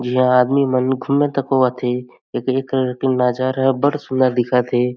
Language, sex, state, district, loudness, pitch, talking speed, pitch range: Chhattisgarhi, male, Chhattisgarh, Jashpur, -18 LUFS, 130 Hz, 155 wpm, 125-135 Hz